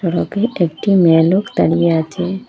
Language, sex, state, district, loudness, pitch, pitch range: Bengali, female, Assam, Hailakandi, -15 LUFS, 180 Hz, 165-195 Hz